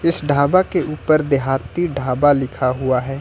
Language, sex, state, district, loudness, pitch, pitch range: Hindi, male, Jharkhand, Ranchi, -18 LUFS, 140 Hz, 130-155 Hz